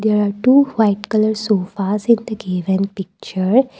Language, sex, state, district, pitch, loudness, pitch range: English, female, Assam, Kamrup Metropolitan, 210 Hz, -17 LUFS, 195-220 Hz